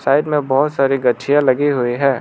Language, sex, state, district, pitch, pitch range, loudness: Hindi, male, Arunachal Pradesh, Lower Dibang Valley, 135 Hz, 125-145 Hz, -16 LUFS